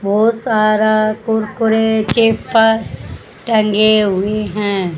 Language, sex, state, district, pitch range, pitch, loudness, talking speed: Hindi, female, Haryana, Jhajjar, 210-225 Hz, 215 Hz, -14 LUFS, 85 wpm